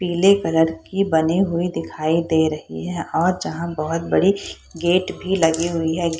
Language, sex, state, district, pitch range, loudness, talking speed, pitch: Hindi, female, Bihar, Purnia, 160-180 Hz, -20 LUFS, 175 wpm, 170 Hz